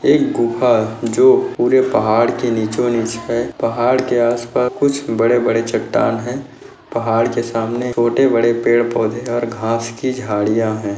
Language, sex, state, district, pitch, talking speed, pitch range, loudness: Hindi, male, Maharashtra, Nagpur, 120 Hz, 165 wpm, 115-125 Hz, -16 LUFS